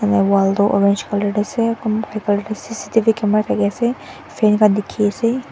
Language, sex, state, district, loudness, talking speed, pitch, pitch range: Nagamese, female, Nagaland, Dimapur, -18 LUFS, 175 wpm, 210 Hz, 205-225 Hz